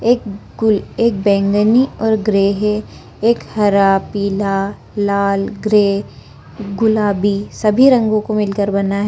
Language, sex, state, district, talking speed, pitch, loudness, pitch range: Hindi, female, Bihar, Saran, 120 wpm, 205 Hz, -15 LUFS, 200-215 Hz